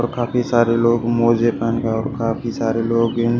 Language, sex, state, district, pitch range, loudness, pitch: Hindi, male, Odisha, Malkangiri, 115-120 Hz, -18 LUFS, 115 Hz